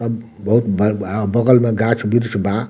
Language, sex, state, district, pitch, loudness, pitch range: Bhojpuri, male, Bihar, Muzaffarpur, 115 Hz, -17 LUFS, 105-115 Hz